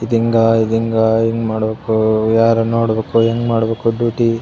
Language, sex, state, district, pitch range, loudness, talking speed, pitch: Kannada, male, Karnataka, Raichur, 110-115 Hz, -15 LUFS, 165 wpm, 115 Hz